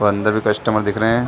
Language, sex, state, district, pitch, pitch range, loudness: Hindi, male, Chhattisgarh, Bastar, 105 Hz, 105-110 Hz, -18 LUFS